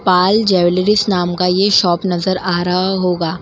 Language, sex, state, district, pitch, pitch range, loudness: Hindi, female, Delhi, New Delhi, 180 Hz, 175-190 Hz, -14 LUFS